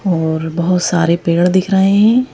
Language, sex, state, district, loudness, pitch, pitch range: Hindi, female, Madhya Pradesh, Bhopal, -13 LUFS, 180 Hz, 170-195 Hz